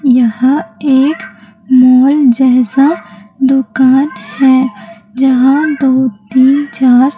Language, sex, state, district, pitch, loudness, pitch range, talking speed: Hindi, female, Chhattisgarh, Raipur, 260 Hz, -10 LUFS, 245-270 Hz, 85 wpm